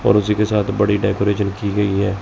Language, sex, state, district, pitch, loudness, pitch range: Hindi, male, Chandigarh, Chandigarh, 100 Hz, -18 LUFS, 100-105 Hz